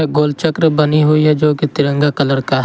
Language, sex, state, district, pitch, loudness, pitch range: Hindi, male, Jharkhand, Garhwa, 150 Hz, -14 LUFS, 145-155 Hz